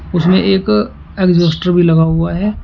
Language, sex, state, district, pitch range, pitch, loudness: Hindi, male, Uttar Pradesh, Shamli, 170-195 Hz, 180 Hz, -13 LUFS